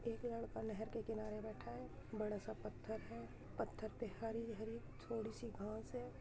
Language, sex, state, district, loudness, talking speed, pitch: Hindi, female, Uttar Pradesh, Muzaffarnagar, -48 LUFS, 175 wpm, 215 Hz